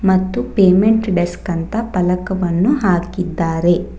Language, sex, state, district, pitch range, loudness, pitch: Kannada, female, Karnataka, Bangalore, 175-195 Hz, -16 LUFS, 185 Hz